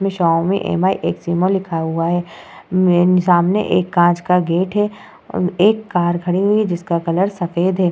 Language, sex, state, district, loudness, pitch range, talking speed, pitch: Hindi, female, Bihar, Vaishali, -17 LUFS, 175-190 Hz, 135 wpm, 180 Hz